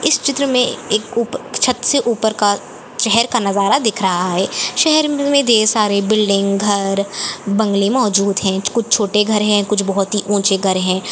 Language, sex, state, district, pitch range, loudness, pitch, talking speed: Hindi, female, Chhattisgarh, Jashpur, 200-235 Hz, -15 LUFS, 210 Hz, 190 wpm